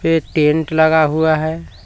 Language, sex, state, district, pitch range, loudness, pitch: Hindi, male, Jharkhand, Palamu, 150-160 Hz, -15 LUFS, 155 Hz